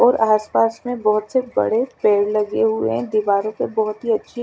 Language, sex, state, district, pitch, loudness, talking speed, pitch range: Hindi, female, Chandigarh, Chandigarh, 215 Hz, -19 LUFS, 215 wpm, 205-235 Hz